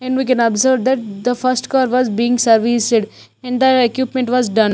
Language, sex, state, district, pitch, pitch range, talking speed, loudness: English, female, Chandigarh, Chandigarh, 250 Hz, 230-255 Hz, 200 wpm, -15 LUFS